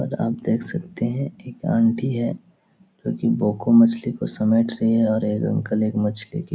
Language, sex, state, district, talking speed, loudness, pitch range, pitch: Hindi, male, Bihar, Jahanabad, 210 wpm, -22 LUFS, 110-130 Hz, 115 Hz